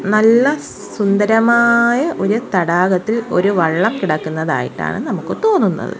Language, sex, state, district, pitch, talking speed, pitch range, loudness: Malayalam, female, Kerala, Kollam, 215 Hz, 90 wpm, 185-235 Hz, -15 LUFS